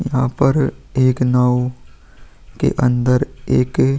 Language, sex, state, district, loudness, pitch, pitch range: Hindi, male, Bihar, Vaishali, -17 LUFS, 125 Hz, 125-130 Hz